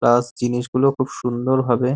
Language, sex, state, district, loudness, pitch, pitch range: Bengali, male, West Bengal, Dakshin Dinajpur, -20 LUFS, 125 Hz, 120-130 Hz